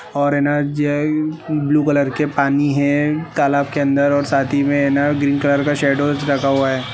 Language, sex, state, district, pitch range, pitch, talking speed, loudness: Hindi, male, Uttar Pradesh, Gorakhpur, 140-145 Hz, 145 Hz, 205 wpm, -17 LUFS